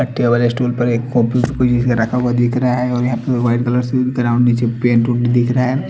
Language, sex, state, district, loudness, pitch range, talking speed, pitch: Hindi, male, Chandigarh, Chandigarh, -16 LUFS, 120-125 Hz, 225 wpm, 120 Hz